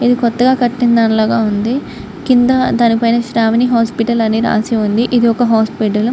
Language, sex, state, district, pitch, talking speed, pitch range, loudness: Telugu, female, Andhra Pradesh, Guntur, 230 Hz, 145 wpm, 225-245 Hz, -13 LUFS